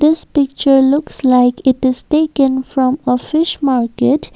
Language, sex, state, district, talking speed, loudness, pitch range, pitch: English, female, Assam, Kamrup Metropolitan, 150 wpm, -14 LUFS, 255-295 Hz, 270 Hz